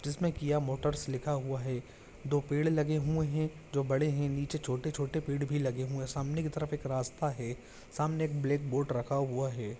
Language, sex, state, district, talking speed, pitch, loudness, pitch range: Hindi, male, Andhra Pradesh, Visakhapatnam, 210 wpm, 145 Hz, -33 LUFS, 135-150 Hz